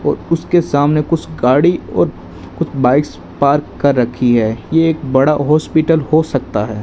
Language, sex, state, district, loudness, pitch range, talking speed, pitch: Hindi, male, Rajasthan, Bikaner, -14 LUFS, 130-160 Hz, 165 wpm, 145 Hz